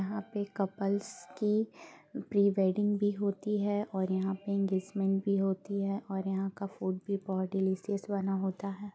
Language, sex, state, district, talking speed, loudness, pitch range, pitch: Hindi, female, Bihar, Gaya, 175 wpm, -33 LUFS, 190-205 Hz, 195 Hz